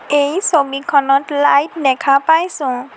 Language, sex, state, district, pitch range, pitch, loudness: Assamese, female, Assam, Sonitpur, 275-310 Hz, 285 Hz, -14 LUFS